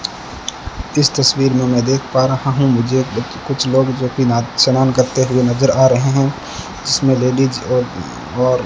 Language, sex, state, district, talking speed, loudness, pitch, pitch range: Hindi, male, Rajasthan, Bikaner, 175 wpm, -15 LUFS, 130 Hz, 125-135 Hz